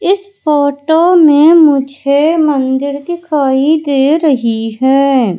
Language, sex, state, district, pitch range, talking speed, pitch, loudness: Hindi, female, Madhya Pradesh, Katni, 270-320 Hz, 100 wpm, 285 Hz, -11 LUFS